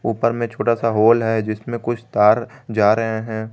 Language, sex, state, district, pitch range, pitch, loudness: Hindi, male, Jharkhand, Garhwa, 110-115 Hz, 115 Hz, -19 LUFS